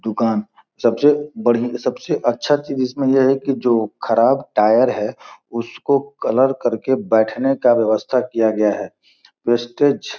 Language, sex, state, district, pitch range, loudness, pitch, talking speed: Hindi, male, Bihar, Gopalganj, 115-135 Hz, -18 LUFS, 120 Hz, 155 wpm